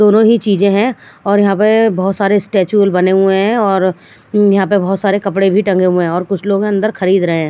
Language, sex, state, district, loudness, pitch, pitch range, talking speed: Hindi, female, Punjab, Fazilka, -13 LUFS, 200 Hz, 190-205 Hz, 250 wpm